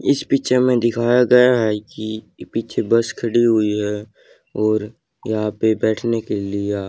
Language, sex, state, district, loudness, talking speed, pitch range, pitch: Hindi, male, Haryana, Charkhi Dadri, -18 LUFS, 155 wpm, 105-120 Hz, 110 Hz